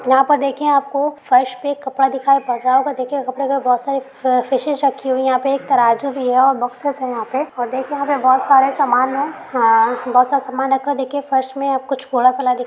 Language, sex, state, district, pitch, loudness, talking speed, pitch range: Hindi, female, Uttar Pradesh, Hamirpur, 265 Hz, -17 LUFS, 250 wpm, 255-275 Hz